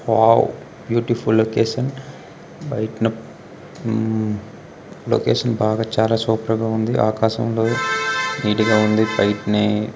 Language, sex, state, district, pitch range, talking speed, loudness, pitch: Telugu, male, Andhra Pradesh, Krishna, 110-115 Hz, 90 wpm, -19 LUFS, 110 Hz